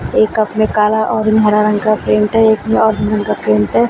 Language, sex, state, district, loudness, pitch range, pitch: Hindi, female, Bihar, Katihar, -13 LUFS, 210-220 Hz, 215 Hz